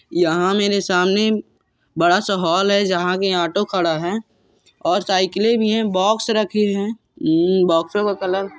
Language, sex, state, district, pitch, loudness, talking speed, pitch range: Hindi, male, Andhra Pradesh, Anantapur, 195 Hz, -18 LUFS, 170 wpm, 180-205 Hz